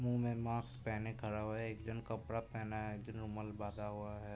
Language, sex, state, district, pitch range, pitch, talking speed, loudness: Hindi, male, Uttar Pradesh, Budaun, 105-115 Hz, 110 Hz, 235 wpm, -43 LUFS